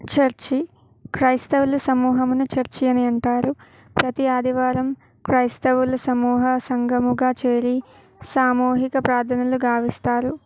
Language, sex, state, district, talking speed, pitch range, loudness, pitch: Telugu, female, Telangana, Karimnagar, 90 wpm, 250-260 Hz, -20 LUFS, 255 Hz